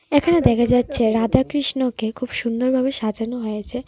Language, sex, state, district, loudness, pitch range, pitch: Bengali, female, Tripura, West Tripura, -20 LUFS, 225-265 Hz, 245 Hz